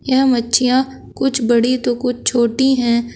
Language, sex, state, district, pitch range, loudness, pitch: Hindi, male, Uttar Pradesh, Shamli, 235-260 Hz, -16 LUFS, 250 Hz